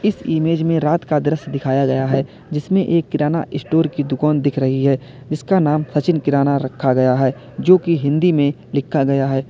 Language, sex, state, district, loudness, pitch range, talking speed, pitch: Hindi, male, Uttar Pradesh, Lalitpur, -18 LUFS, 135-160 Hz, 200 wpm, 145 Hz